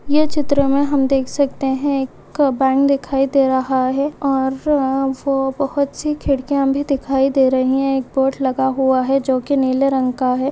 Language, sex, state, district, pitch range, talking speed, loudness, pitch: Hindi, female, Bihar, Supaul, 265-280 Hz, 190 wpm, -17 LUFS, 270 Hz